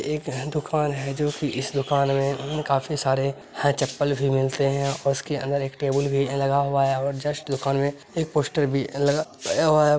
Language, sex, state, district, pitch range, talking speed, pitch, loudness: Maithili, male, Bihar, Araria, 135-150 Hz, 215 wpm, 140 Hz, -24 LUFS